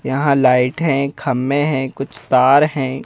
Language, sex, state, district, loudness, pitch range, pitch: Hindi, male, Madhya Pradesh, Bhopal, -16 LUFS, 130-140 Hz, 135 Hz